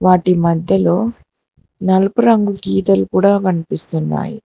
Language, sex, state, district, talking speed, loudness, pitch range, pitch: Telugu, female, Telangana, Hyderabad, 95 wpm, -15 LUFS, 165-200 Hz, 185 Hz